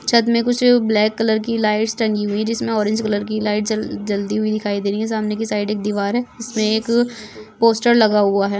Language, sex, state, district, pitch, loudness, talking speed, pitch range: Hindi, female, Goa, North and South Goa, 215 Hz, -18 LUFS, 235 wpm, 210-230 Hz